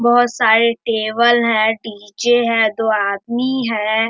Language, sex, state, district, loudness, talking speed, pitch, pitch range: Hindi, male, Bihar, Darbhanga, -15 LUFS, 130 wpm, 225 Hz, 220-240 Hz